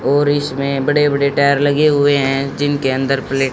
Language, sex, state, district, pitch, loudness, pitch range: Hindi, male, Haryana, Jhajjar, 140 Hz, -15 LUFS, 135-145 Hz